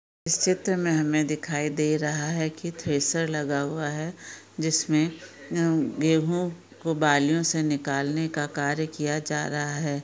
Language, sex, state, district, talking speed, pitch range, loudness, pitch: Hindi, female, Jharkhand, Sahebganj, 160 wpm, 150-165 Hz, -26 LUFS, 155 Hz